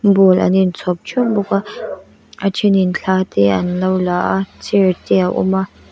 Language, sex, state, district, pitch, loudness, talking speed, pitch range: Mizo, female, Mizoram, Aizawl, 190 Hz, -16 LUFS, 210 wpm, 180-195 Hz